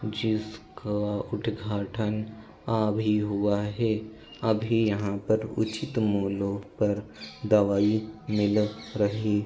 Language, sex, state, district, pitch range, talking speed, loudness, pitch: Hindi, male, Uttar Pradesh, Budaun, 105-110 Hz, 95 wpm, -28 LUFS, 105 Hz